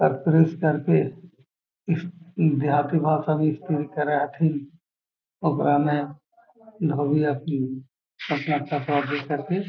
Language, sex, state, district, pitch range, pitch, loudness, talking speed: Magahi, male, Bihar, Gaya, 145-160 Hz, 150 Hz, -24 LUFS, 130 wpm